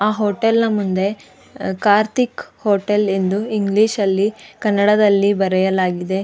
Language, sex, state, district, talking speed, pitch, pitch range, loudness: Kannada, female, Karnataka, Dakshina Kannada, 105 wpm, 205 Hz, 195-215 Hz, -17 LUFS